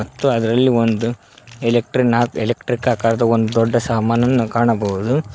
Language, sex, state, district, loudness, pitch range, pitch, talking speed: Kannada, male, Karnataka, Koppal, -17 LUFS, 115-120 Hz, 115 Hz, 110 wpm